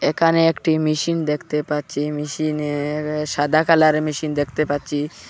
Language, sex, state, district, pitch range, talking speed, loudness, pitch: Bengali, male, Assam, Hailakandi, 150-155 Hz, 125 wpm, -20 LUFS, 150 Hz